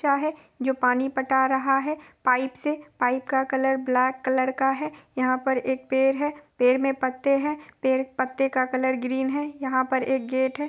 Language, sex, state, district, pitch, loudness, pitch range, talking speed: Hindi, female, Bihar, Gopalganj, 265 Hz, -25 LUFS, 260-275 Hz, 195 wpm